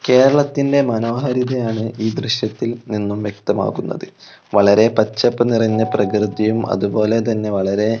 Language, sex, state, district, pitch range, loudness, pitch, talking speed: Malayalam, male, Kerala, Kozhikode, 105-120 Hz, -17 LUFS, 110 Hz, 90 wpm